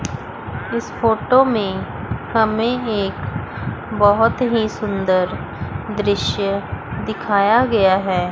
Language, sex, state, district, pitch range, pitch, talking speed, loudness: Hindi, female, Chandigarh, Chandigarh, 190-225 Hz, 205 Hz, 85 wpm, -19 LUFS